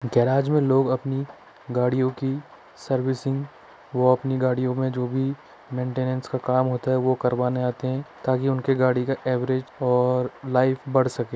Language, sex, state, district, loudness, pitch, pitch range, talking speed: Hindi, male, Uttar Pradesh, Budaun, -24 LUFS, 130 Hz, 125-135 Hz, 170 wpm